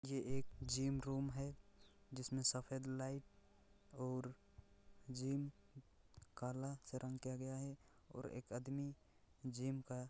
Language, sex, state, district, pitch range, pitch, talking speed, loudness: Hindi, male, Bihar, Purnia, 125-135 Hz, 130 Hz, 125 wpm, -46 LUFS